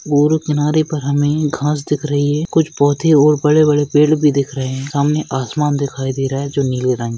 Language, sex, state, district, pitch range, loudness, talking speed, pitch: Hindi, male, Maharashtra, Nagpur, 140-150 Hz, -16 LUFS, 225 wpm, 145 Hz